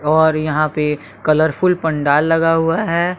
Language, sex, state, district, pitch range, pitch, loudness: Hindi, male, Bihar, West Champaran, 150-165 Hz, 160 Hz, -16 LUFS